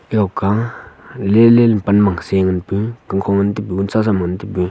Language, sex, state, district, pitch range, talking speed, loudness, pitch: Wancho, male, Arunachal Pradesh, Longding, 95-110 Hz, 205 wpm, -16 LUFS, 100 Hz